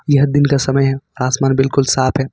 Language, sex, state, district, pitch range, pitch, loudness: Hindi, male, Jharkhand, Ranchi, 135-140 Hz, 135 Hz, -15 LUFS